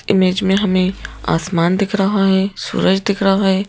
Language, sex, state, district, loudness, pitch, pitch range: Hindi, female, Madhya Pradesh, Bhopal, -16 LUFS, 195 Hz, 185-195 Hz